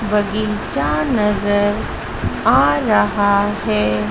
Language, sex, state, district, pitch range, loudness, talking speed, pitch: Hindi, female, Madhya Pradesh, Dhar, 145-210 Hz, -17 LUFS, 75 wpm, 205 Hz